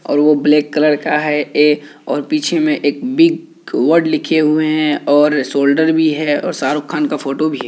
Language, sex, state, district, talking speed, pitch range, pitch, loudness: Hindi, male, Bihar, Kishanganj, 220 wpm, 150-160 Hz, 150 Hz, -14 LUFS